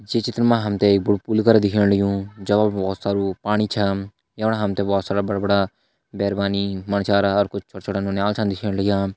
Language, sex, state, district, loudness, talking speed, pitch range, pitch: Hindi, male, Uttarakhand, Tehri Garhwal, -21 LUFS, 220 wpm, 100-105 Hz, 100 Hz